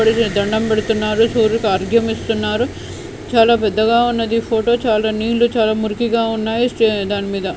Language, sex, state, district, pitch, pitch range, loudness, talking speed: Telugu, female, Andhra Pradesh, Chittoor, 225 Hz, 215-230 Hz, -16 LUFS, 145 wpm